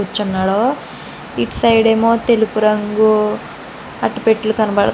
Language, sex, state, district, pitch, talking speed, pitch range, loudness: Telugu, female, Andhra Pradesh, Srikakulam, 215 Hz, 85 wpm, 205-225 Hz, -15 LUFS